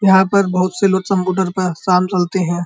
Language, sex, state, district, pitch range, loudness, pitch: Hindi, male, Uttar Pradesh, Muzaffarnagar, 180-190 Hz, -16 LUFS, 185 Hz